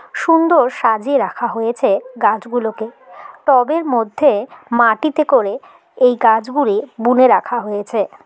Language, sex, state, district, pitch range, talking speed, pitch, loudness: Bengali, female, West Bengal, Jalpaiguri, 225-280 Hz, 100 wpm, 245 Hz, -15 LUFS